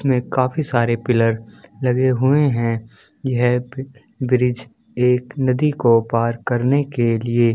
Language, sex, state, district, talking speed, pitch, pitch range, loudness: Hindi, male, Chhattisgarh, Balrampur, 135 wpm, 125 Hz, 120-130 Hz, -19 LUFS